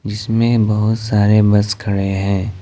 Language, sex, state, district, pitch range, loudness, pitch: Hindi, male, Jharkhand, Ranchi, 100-110 Hz, -15 LUFS, 105 Hz